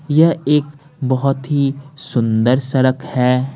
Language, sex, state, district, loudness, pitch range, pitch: Hindi, male, Bihar, Patna, -17 LUFS, 130-150 Hz, 135 Hz